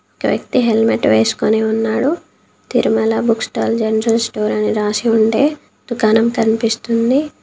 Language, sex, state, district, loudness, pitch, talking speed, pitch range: Telugu, female, Telangana, Komaram Bheem, -16 LUFS, 225 Hz, 120 wpm, 220-235 Hz